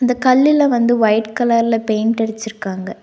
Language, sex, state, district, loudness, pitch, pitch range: Tamil, female, Tamil Nadu, Nilgiris, -16 LUFS, 230 Hz, 220-245 Hz